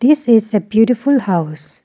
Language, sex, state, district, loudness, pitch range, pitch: English, female, Arunachal Pradesh, Lower Dibang Valley, -14 LUFS, 185-255 Hz, 225 Hz